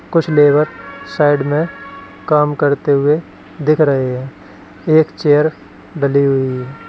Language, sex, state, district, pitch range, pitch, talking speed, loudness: Hindi, male, Uttar Pradesh, Lalitpur, 140-155 Hz, 150 Hz, 130 wpm, -15 LUFS